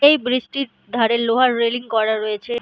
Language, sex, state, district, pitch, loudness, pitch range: Bengali, female, West Bengal, Malda, 235 Hz, -19 LUFS, 225-255 Hz